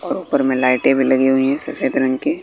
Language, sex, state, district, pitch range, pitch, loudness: Hindi, male, Bihar, West Champaran, 130-140 Hz, 135 Hz, -17 LUFS